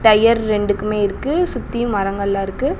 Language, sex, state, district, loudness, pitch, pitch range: Tamil, female, Tamil Nadu, Namakkal, -18 LUFS, 215 Hz, 200-235 Hz